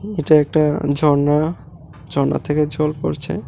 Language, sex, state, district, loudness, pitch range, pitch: Bengali, male, Tripura, West Tripura, -18 LUFS, 145-155 Hz, 150 Hz